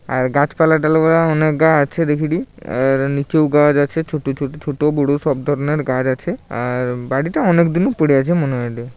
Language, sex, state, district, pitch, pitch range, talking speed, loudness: Bengali, male, West Bengal, Paschim Medinipur, 145 Hz, 135-160 Hz, 155 wpm, -17 LUFS